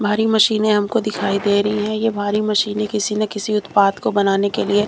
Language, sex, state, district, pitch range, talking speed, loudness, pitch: Hindi, female, Bihar, Katihar, 205-215 Hz, 220 wpm, -18 LUFS, 210 Hz